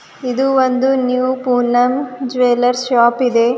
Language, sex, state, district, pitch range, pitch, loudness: Kannada, female, Karnataka, Bidar, 245-260 Hz, 250 Hz, -15 LUFS